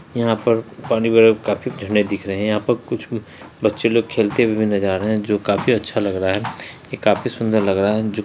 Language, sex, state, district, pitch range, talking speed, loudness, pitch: Hindi, male, Bihar, Saharsa, 105-115 Hz, 255 wpm, -19 LUFS, 110 Hz